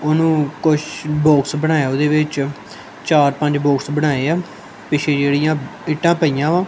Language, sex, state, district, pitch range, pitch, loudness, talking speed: Punjabi, male, Punjab, Kapurthala, 145-155 Hz, 150 Hz, -17 LUFS, 145 wpm